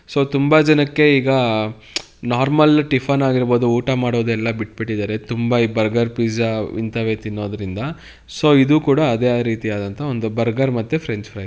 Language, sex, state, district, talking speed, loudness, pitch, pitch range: Kannada, male, Karnataka, Mysore, 135 wpm, -18 LUFS, 120 Hz, 110-140 Hz